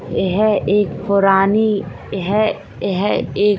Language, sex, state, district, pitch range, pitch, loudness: Hindi, female, Bihar, Saran, 195-210 Hz, 200 Hz, -17 LUFS